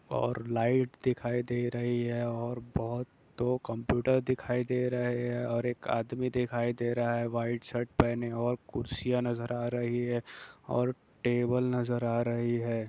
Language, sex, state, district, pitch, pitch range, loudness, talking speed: Hindi, male, Bihar, Jahanabad, 120 Hz, 120-125 Hz, -32 LUFS, 170 wpm